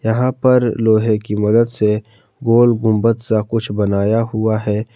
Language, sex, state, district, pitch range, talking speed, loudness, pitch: Hindi, male, Jharkhand, Palamu, 105-115 Hz, 155 wpm, -16 LUFS, 110 Hz